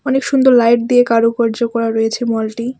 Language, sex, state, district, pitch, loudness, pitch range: Bengali, female, West Bengal, Alipurduar, 235 Hz, -14 LUFS, 230-245 Hz